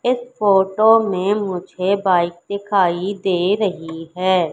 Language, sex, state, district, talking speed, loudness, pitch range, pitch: Hindi, female, Madhya Pradesh, Katni, 120 wpm, -18 LUFS, 180-205 Hz, 190 Hz